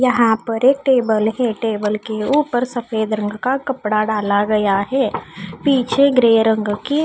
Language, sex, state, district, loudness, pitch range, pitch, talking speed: Hindi, female, Haryana, Charkhi Dadri, -17 LUFS, 215-255 Hz, 225 Hz, 160 wpm